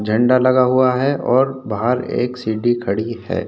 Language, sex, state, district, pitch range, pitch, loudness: Hindi, male, Uttar Pradesh, Hamirpur, 110-130 Hz, 125 Hz, -17 LUFS